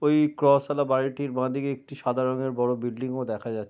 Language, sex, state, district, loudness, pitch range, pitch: Bengali, male, West Bengal, Jalpaiguri, -26 LUFS, 125-140 Hz, 130 Hz